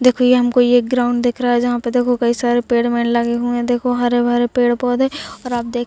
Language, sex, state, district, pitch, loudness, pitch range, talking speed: Hindi, female, Bihar, Gopalganj, 245 Hz, -16 LUFS, 240-245 Hz, 265 wpm